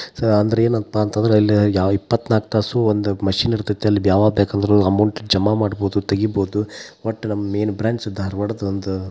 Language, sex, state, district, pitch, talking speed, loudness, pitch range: Kannada, male, Karnataka, Dharwad, 105 Hz, 165 wpm, -19 LUFS, 100-110 Hz